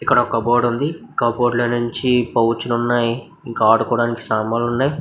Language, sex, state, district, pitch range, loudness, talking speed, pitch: Telugu, male, Andhra Pradesh, Visakhapatnam, 115-120 Hz, -18 LUFS, 300 wpm, 120 Hz